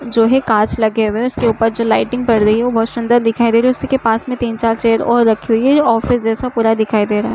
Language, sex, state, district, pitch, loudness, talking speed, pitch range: Hindi, female, Uttar Pradesh, Budaun, 230 Hz, -14 LUFS, 310 wpm, 225-240 Hz